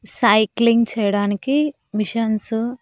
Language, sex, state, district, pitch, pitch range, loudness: Telugu, female, Andhra Pradesh, Annamaya, 225 Hz, 210-235 Hz, -19 LUFS